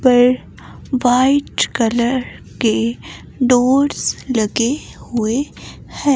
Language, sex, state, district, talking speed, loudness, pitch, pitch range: Hindi, female, Himachal Pradesh, Shimla, 80 wpm, -17 LUFS, 245 Hz, 230-260 Hz